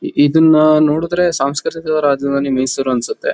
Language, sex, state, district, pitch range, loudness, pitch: Kannada, male, Karnataka, Mysore, 140-160 Hz, -14 LUFS, 155 Hz